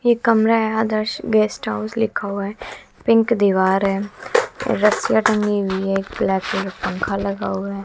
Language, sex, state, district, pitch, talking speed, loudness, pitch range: Hindi, female, Bihar, West Champaran, 205 Hz, 175 wpm, -19 LUFS, 195-220 Hz